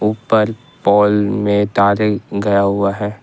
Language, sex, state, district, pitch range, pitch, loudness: Hindi, male, Jharkhand, Ranchi, 100-105 Hz, 105 Hz, -15 LUFS